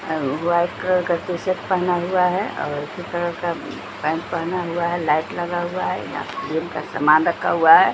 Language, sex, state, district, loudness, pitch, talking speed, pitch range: Hindi, female, Bihar, Patna, -21 LUFS, 175 Hz, 205 wpm, 160-180 Hz